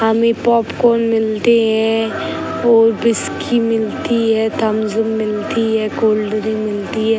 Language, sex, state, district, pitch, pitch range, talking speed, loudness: Hindi, female, Uttar Pradesh, Gorakhpur, 225 Hz, 220-230 Hz, 125 wpm, -16 LUFS